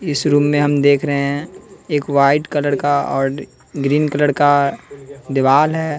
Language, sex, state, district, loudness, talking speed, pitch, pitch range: Hindi, male, Bihar, West Champaran, -16 LUFS, 170 wpm, 145 Hz, 140-145 Hz